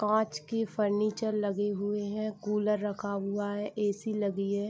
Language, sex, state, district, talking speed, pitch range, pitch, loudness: Hindi, female, Bihar, Saharsa, 165 wpm, 205-215 Hz, 205 Hz, -31 LUFS